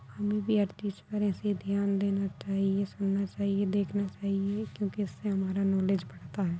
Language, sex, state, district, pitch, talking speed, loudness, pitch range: Hindi, female, Bihar, Sitamarhi, 200 Hz, 165 wpm, -31 LUFS, 195-205 Hz